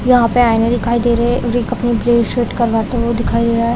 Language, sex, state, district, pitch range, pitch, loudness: Hindi, female, Chhattisgarh, Raigarh, 235-240 Hz, 235 Hz, -15 LUFS